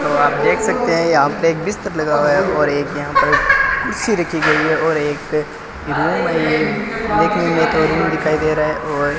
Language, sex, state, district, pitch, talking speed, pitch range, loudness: Hindi, male, Rajasthan, Bikaner, 155 Hz, 200 wpm, 150-165 Hz, -16 LUFS